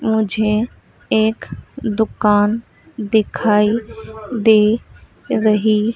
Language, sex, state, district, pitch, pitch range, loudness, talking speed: Hindi, female, Madhya Pradesh, Dhar, 220 Hz, 215-225 Hz, -17 LUFS, 60 wpm